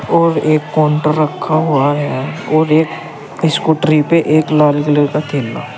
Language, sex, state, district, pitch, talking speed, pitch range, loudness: Hindi, male, Uttar Pradesh, Saharanpur, 150 Hz, 155 wpm, 145-155 Hz, -14 LUFS